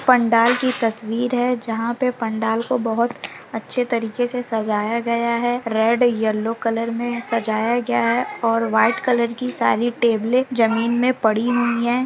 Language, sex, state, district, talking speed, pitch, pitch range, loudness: Hindi, female, Bihar, Sitamarhi, 165 wpm, 235 Hz, 225-245 Hz, -20 LUFS